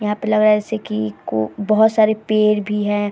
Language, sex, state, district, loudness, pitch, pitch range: Hindi, female, Bihar, Vaishali, -17 LUFS, 210 Hz, 205-215 Hz